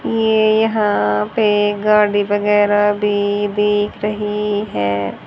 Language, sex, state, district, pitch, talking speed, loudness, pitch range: Hindi, female, Haryana, Charkhi Dadri, 205 Hz, 100 wpm, -16 LUFS, 205-210 Hz